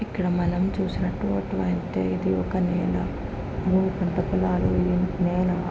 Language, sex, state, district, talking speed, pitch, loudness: Telugu, female, Andhra Pradesh, Guntur, 105 wpm, 175 Hz, -25 LUFS